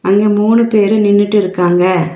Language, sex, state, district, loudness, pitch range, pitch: Tamil, female, Tamil Nadu, Nilgiris, -11 LUFS, 185-210 Hz, 205 Hz